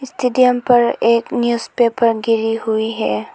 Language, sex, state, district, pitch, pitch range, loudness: Hindi, female, Arunachal Pradesh, Lower Dibang Valley, 235 Hz, 225-245 Hz, -16 LUFS